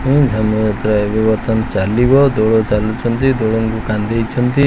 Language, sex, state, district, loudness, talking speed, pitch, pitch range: Odia, male, Odisha, Khordha, -15 LUFS, 105 wpm, 110 Hz, 110-125 Hz